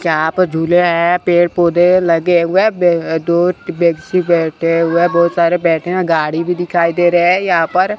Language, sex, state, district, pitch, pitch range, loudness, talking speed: Hindi, male, Chandigarh, Chandigarh, 175 Hz, 165-180 Hz, -13 LUFS, 190 wpm